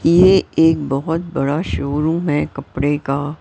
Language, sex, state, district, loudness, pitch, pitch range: Hindi, female, Maharashtra, Mumbai Suburban, -17 LUFS, 150 Hz, 145-165 Hz